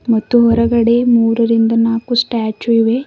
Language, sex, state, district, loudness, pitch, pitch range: Kannada, female, Karnataka, Bidar, -13 LUFS, 230 Hz, 230-235 Hz